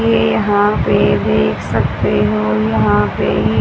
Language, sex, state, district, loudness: Hindi, female, Haryana, Jhajjar, -14 LUFS